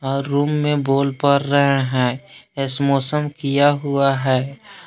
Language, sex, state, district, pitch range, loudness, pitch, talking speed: Hindi, male, Jharkhand, Palamu, 135-145 Hz, -18 LUFS, 140 Hz, 135 wpm